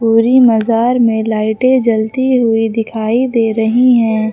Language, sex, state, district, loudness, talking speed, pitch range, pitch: Hindi, female, Uttar Pradesh, Lucknow, -12 LUFS, 140 wpm, 220-245 Hz, 225 Hz